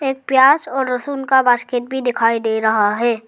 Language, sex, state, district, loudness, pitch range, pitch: Hindi, female, Arunachal Pradesh, Lower Dibang Valley, -16 LUFS, 230-265 Hz, 245 Hz